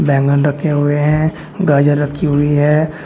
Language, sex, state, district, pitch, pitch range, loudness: Hindi, male, Uttar Pradesh, Shamli, 145 Hz, 145-155 Hz, -14 LUFS